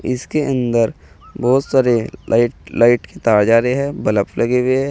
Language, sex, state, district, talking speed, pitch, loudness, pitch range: Hindi, male, Uttar Pradesh, Saharanpur, 185 wpm, 120 Hz, -16 LUFS, 115-130 Hz